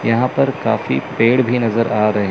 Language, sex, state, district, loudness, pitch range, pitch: Hindi, male, Chandigarh, Chandigarh, -16 LUFS, 110-125 Hz, 115 Hz